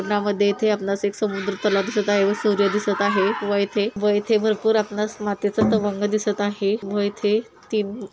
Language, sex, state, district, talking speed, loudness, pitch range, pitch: Marathi, female, Maharashtra, Sindhudurg, 190 wpm, -22 LUFS, 205-215 Hz, 205 Hz